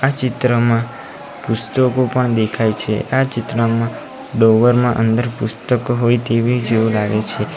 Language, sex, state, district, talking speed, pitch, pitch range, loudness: Gujarati, male, Gujarat, Valsad, 135 wpm, 115 Hz, 110-125 Hz, -17 LUFS